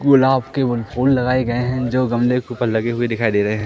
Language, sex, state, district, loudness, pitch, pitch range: Hindi, male, Madhya Pradesh, Katni, -18 LUFS, 125 Hz, 120-130 Hz